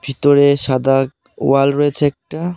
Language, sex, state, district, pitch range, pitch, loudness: Bengali, male, West Bengal, Cooch Behar, 135-145 Hz, 140 Hz, -15 LUFS